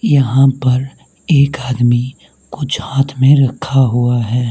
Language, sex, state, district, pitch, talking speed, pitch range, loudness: Hindi, male, Mizoram, Aizawl, 130 Hz, 135 wpm, 120-135 Hz, -13 LUFS